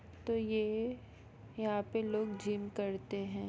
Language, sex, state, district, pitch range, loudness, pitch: Hindi, female, Jharkhand, Sahebganj, 205-220 Hz, -37 LUFS, 215 Hz